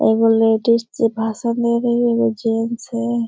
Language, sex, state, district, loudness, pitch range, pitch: Hindi, female, Bihar, Jamui, -18 LUFS, 225-235 Hz, 230 Hz